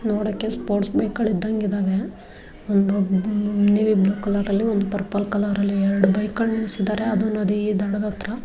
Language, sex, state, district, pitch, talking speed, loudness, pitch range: Kannada, female, Karnataka, Dharwad, 205 Hz, 150 wpm, -22 LUFS, 200-215 Hz